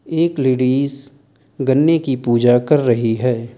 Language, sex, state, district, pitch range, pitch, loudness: Hindi, male, Uttar Pradesh, Lalitpur, 120-140 Hz, 135 Hz, -16 LUFS